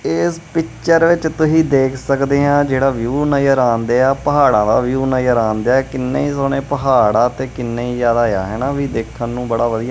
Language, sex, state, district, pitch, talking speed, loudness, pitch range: Punjabi, male, Punjab, Kapurthala, 130 Hz, 200 wpm, -16 LUFS, 120-140 Hz